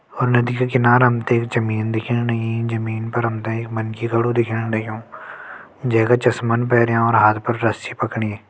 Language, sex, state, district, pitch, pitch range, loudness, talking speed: Garhwali, male, Uttarakhand, Uttarkashi, 115 Hz, 110-120 Hz, -19 LUFS, 170 wpm